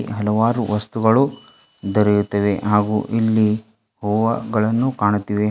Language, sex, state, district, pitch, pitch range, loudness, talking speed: Kannada, female, Karnataka, Bidar, 105 Hz, 105-110 Hz, -19 LUFS, 75 wpm